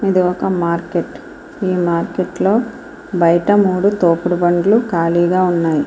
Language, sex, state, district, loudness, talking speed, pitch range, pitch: Telugu, female, Andhra Pradesh, Srikakulam, -16 LUFS, 110 wpm, 170-205 Hz, 180 Hz